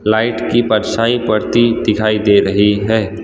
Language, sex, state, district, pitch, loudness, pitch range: Hindi, male, Gujarat, Valsad, 110 Hz, -14 LUFS, 105-115 Hz